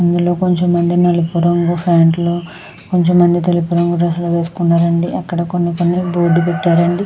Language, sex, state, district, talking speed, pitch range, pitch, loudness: Telugu, female, Andhra Pradesh, Krishna, 180 wpm, 170-175 Hz, 175 Hz, -14 LUFS